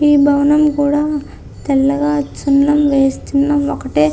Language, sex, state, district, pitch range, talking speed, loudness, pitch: Telugu, female, Andhra Pradesh, Visakhapatnam, 275-295 Hz, 130 wpm, -14 LUFS, 285 Hz